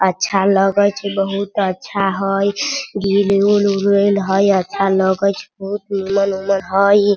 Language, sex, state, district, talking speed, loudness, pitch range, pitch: Hindi, female, Bihar, Sitamarhi, 110 wpm, -16 LUFS, 195-200 Hz, 200 Hz